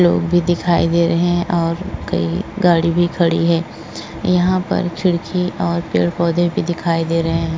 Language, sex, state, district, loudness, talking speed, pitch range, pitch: Hindi, female, Uttar Pradesh, Etah, -17 LUFS, 180 wpm, 165-175 Hz, 170 Hz